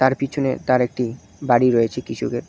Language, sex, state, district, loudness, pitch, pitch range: Bengali, male, West Bengal, Cooch Behar, -20 LUFS, 125 Hz, 120-135 Hz